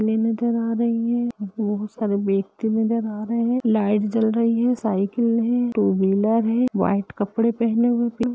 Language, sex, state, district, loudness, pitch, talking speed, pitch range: Hindi, male, Uttar Pradesh, Budaun, -21 LUFS, 225 Hz, 185 wpm, 210-235 Hz